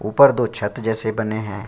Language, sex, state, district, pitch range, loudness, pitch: Hindi, male, Bihar, Bhagalpur, 105-115 Hz, -20 LUFS, 110 Hz